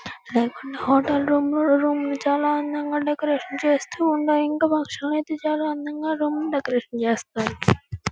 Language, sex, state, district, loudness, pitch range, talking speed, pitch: Telugu, female, Andhra Pradesh, Guntur, -23 LUFS, 280-300 Hz, 125 wpm, 295 Hz